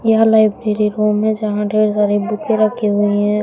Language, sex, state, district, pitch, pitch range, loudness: Hindi, female, Uttar Pradesh, Shamli, 210 Hz, 210-220 Hz, -15 LUFS